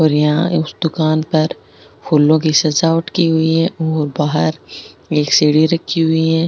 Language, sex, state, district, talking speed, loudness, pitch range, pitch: Rajasthani, female, Rajasthan, Nagaur, 165 wpm, -15 LUFS, 150-165 Hz, 155 Hz